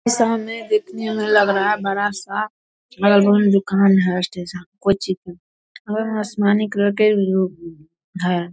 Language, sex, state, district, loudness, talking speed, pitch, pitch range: Hindi, female, Bihar, Darbhanga, -19 LUFS, 120 wpm, 200 Hz, 185-215 Hz